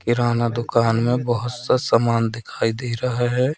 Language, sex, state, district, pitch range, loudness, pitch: Hindi, male, Madhya Pradesh, Katni, 115-120 Hz, -21 LUFS, 120 Hz